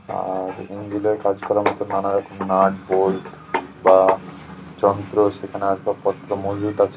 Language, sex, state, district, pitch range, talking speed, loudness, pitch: Bengali, male, West Bengal, Jhargram, 95-100 Hz, 145 wpm, -21 LUFS, 95 Hz